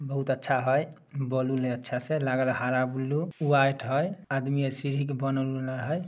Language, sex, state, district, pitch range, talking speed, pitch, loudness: Maithili, male, Bihar, Samastipur, 130-145 Hz, 140 wpm, 135 Hz, -28 LUFS